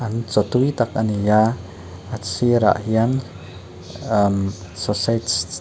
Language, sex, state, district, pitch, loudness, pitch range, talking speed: Mizo, male, Mizoram, Aizawl, 105 Hz, -20 LUFS, 90-115 Hz, 140 wpm